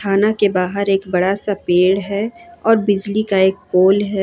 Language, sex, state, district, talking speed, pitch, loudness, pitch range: Hindi, female, Jharkhand, Ranchi, 200 wpm, 200 Hz, -16 LUFS, 190-205 Hz